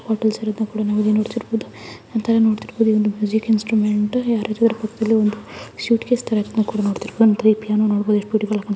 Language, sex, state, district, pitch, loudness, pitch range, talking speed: Kannada, female, Karnataka, Dakshina Kannada, 215 Hz, -19 LUFS, 210-225 Hz, 115 wpm